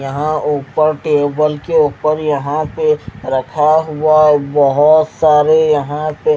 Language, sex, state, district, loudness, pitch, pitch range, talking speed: Hindi, male, Haryana, Jhajjar, -13 LUFS, 150 Hz, 145-155 Hz, 130 wpm